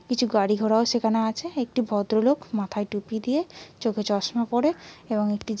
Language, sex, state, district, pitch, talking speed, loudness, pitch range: Bengali, male, West Bengal, Dakshin Dinajpur, 220 Hz, 180 wpm, -25 LUFS, 210-245 Hz